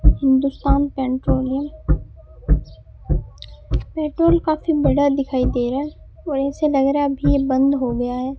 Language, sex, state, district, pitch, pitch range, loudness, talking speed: Hindi, male, Rajasthan, Bikaner, 275 Hz, 265-295 Hz, -20 LUFS, 135 wpm